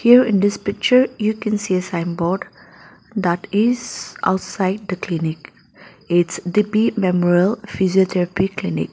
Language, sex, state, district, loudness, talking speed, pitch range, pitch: English, female, Nagaland, Dimapur, -19 LUFS, 135 wpm, 175-210 Hz, 190 Hz